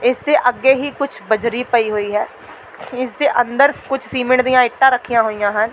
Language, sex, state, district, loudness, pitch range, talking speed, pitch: Punjabi, female, Delhi, New Delhi, -16 LUFS, 235-265 Hz, 200 wpm, 250 Hz